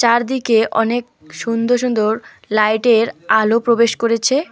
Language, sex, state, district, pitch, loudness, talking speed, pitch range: Bengali, female, West Bengal, Alipurduar, 230 Hz, -16 LUFS, 120 wpm, 220-240 Hz